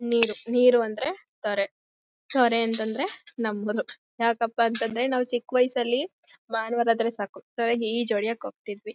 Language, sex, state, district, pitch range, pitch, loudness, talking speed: Kannada, female, Karnataka, Mysore, 220-245 Hz, 230 Hz, -26 LUFS, 120 wpm